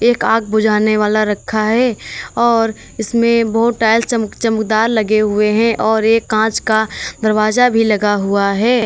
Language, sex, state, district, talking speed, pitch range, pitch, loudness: Hindi, female, Uttar Pradesh, Lalitpur, 160 wpm, 215-230 Hz, 220 Hz, -14 LUFS